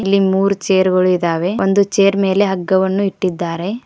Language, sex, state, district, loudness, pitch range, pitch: Kannada, female, Karnataka, Koppal, -15 LUFS, 185-200 Hz, 190 Hz